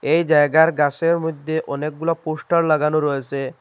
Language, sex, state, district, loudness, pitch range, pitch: Bengali, male, Assam, Hailakandi, -19 LUFS, 145-165 Hz, 155 Hz